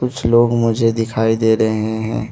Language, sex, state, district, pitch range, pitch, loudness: Hindi, male, Arunachal Pradesh, Lower Dibang Valley, 110-115 Hz, 115 Hz, -16 LUFS